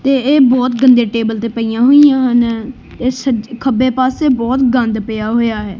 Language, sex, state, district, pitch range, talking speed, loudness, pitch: Punjabi, male, Punjab, Kapurthala, 230-260 Hz, 165 wpm, -13 LUFS, 250 Hz